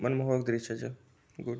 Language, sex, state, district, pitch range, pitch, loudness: Garhwali, male, Uttarakhand, Tehri Garhwal, 120-130 Hz, 125 Hz, -33 LUFS